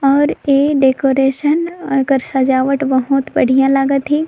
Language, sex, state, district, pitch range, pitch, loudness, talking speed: Sadri, female, Chhattisgarh, Jashpur, 270-285 Hz, 275 Hz, -14 LUFS, 125 wpm